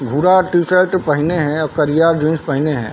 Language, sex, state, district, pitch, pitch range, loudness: Chhattisgarhi, male, Chhattisgarh, Bilaspur, 155 Hz, 150-175 Hz, -15 LUFS